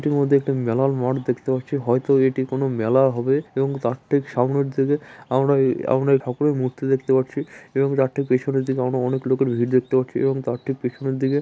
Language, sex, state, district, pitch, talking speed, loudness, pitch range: Bengali, male, West Bengal, Malda, 135 Hz, 205 wpm, -21 LUFS, 130-135 Hz